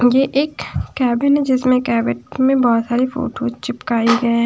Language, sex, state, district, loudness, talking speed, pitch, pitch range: Hindi, female, Punjab, Pathankot, -17 LUFS, 160 wpm, 250 Hz, 235-265 Hz